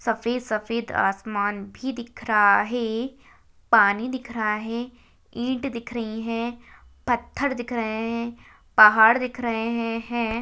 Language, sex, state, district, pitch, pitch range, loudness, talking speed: Hindi, female, Chhattisgarh, Jashpur, 235 Hz, 220-240 Hz, -23 LUFS, 130 wpm